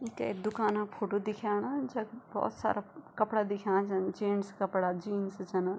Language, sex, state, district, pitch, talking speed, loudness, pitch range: Garhwali, female, Uttarakhand, Tehri Garhwal, 205 Hz, 165 wpm, -33 LUFS, 195-215 Hz